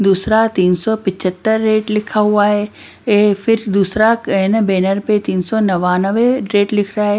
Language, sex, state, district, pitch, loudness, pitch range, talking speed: Hindi, female, Bihar, Patna, 210 Hz, -15 LUFS, 195-220 Hz, 160 wpm